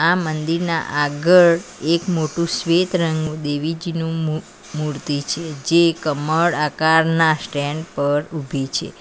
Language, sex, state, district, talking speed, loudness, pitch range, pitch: Gujarati, female, Gujarat, Valsad, 120 wpm, -19 LUFS, 150-170 Hz, 160 Hz